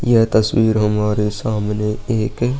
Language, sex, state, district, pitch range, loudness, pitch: Hindi, male, Uttar Pradesh, Muzaffarnagar, 105-115 Hz, -18 LUFS, 110 Hz